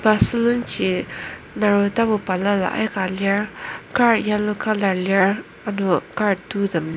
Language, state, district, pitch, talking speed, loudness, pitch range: Ao, Nagaland, Kohima, 205 Hz, 120 wpm, -20 LUFS, 190-215 Hz